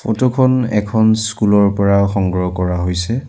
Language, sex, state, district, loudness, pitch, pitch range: Assamese, male, Assam, Sonitpur, -15 LUFS, 105 Hz, 95-110 Hz